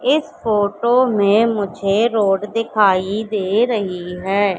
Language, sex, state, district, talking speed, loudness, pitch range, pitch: Hindi, female, Madhya Pradesh, Katni, 115 wpm, -17 LUFS, 195-230 Hz, 205 Hz